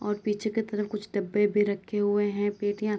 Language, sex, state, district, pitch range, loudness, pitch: Hindi, female, Uttar Pradesh, Jyotiba Phule Nagar, 205-210 Hz, -28 LUFS, 205 Hz